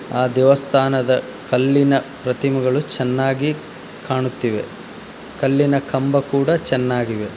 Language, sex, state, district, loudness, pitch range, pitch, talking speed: Kannada, male, Karnataka, Dharwad, -18 LUFS, 130-140 Hz, 135 Hz, 90 wpm